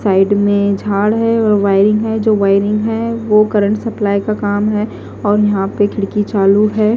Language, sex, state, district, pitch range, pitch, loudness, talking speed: Hindi, female, Punjab, Fazilka, 200-215 Hz, 210 Hz, -14 LUFS, 190 wpm